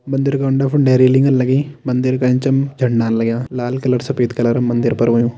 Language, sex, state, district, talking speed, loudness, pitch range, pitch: Kumaoni, male, Uttarakhand, Tehri Garhwal, 200 wpm, -16 LUFS, 120-135 Hz, 130 Hz